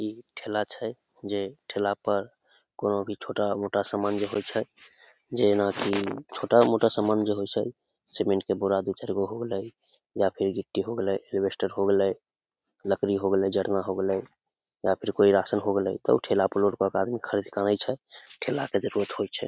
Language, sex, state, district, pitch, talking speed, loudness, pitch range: Maithili, male, Bihar, Samastipur, 100 Hz, 195 wpm, -27 LUFS, 95-105 Hz